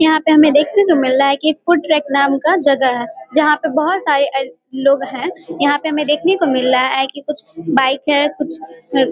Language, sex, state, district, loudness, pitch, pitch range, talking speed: Hindi, female, Bihar, Vaishali, -15 LUFS, 290 Hz, 265-310 Hz, 230 wpm